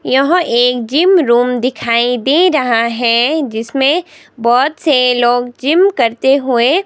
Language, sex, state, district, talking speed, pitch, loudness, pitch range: Hindi, female, Himachal Pradesh, Shimla, 130 wpm, 250 Hz, -12 LUFS, 240-305 Hz